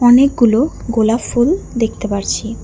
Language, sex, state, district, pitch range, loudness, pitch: Bengali, female, West Bengal, Alipurduar, 225-250 Hz, -15 LUFS, 235 Hz